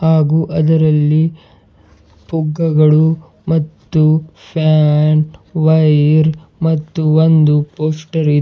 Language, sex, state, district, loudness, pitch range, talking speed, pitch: Kannada, male, Karnataka, Bidar, -13 LUFS, 150-160 Hz, 80 wpm, 155 Hz